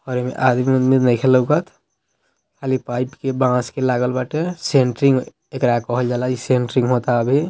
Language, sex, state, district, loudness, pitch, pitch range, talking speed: Hindi, male, Bihar, East Champaran, -18 LUFS, 130 Hz, 125-135 Hz, 210 wpm